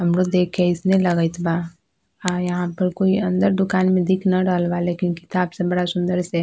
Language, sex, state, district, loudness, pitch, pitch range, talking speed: Bajjika, female, Bihar, Vaishali, -20 LUFS, 180 Hz, 175-185 Hz, 225 wpm